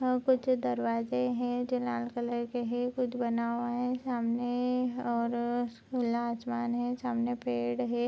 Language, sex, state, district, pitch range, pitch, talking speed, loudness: Hindi, female, Bihar, Araria, 235-245 Hz, 240 Hz, 155 wpm, -32 LUFS